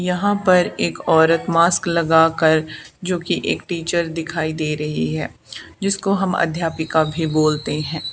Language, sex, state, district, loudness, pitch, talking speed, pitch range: Hindi, female, Haryana, Charkhi Dadri, -19 LUFS, 165 Hz, 155 wpm, 155-175 Hz